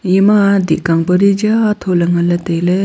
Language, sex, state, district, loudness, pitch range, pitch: Wancho, female, Arunachal Pradesh, Longding, -13 LUFS, 175-200 Hz, 185 Hz